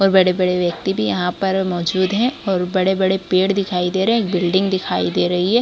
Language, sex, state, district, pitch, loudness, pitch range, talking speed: Hindi, female, Chhattisgarh, Bilaspur, 190 Hz, -18 LUFS, 180-195 Hz, 205 wpm